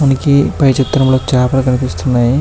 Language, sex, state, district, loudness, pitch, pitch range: Telugu, male, Andhra Pradesh, Chittoor, -12 LUFS, 130 Hz, 125-140 Hz